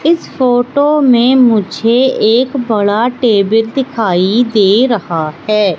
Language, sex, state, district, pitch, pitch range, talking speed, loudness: Hindi, female, Madhya Pradesh, Katni, 235 Hz, 210-255 Hz, 115 wpm, -11 LUFS